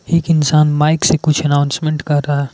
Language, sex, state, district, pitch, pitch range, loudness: Hindi, male, Arunachal Pradesh, Lower Dibang Valley, 150 Hz, 145-155 Hz, -14 LUFS